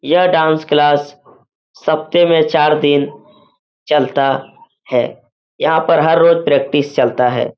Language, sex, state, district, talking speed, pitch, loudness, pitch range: Hindi, male, Uttar Pradesh, Etah, 125 wpm, 150 Hz, -14 LUFS, 145-165 Hz